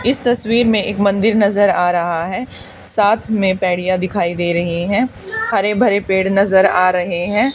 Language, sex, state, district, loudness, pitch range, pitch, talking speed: Hindi, female, Haryana, Charkhi Dadri, -15 LUFS, 180-215 Hz, 200 Hz, 185 wpm